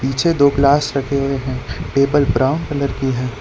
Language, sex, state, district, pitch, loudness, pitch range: Hindi, male, Gujarat, Valsad, 140 Hz, -17 LUFS, 130-140 Hz